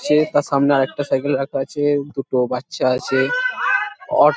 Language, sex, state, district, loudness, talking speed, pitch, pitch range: Bengali, male, West Bengal, Jhargram, -19 LUFS, 165 wpm, 140 Hz, 135-150 Hz